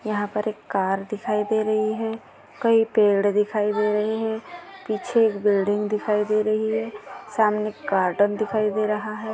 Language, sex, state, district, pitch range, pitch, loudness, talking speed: Hindi, female, Maharashtra, Dhule, 210-220 Hz, 215 Hz, -23 LUFS, 175 wpm